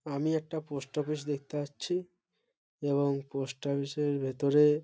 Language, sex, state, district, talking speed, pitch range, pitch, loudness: Bengali, male, West Bengal, Malda, 125 wpm, 140-150 Hz, 145 Hz, -32 LUFS